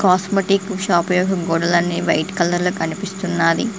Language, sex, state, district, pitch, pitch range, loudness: Telugu, female, Telangana, Mahabubabad, 180 Hz, 170-195 Hz, -18 LUFS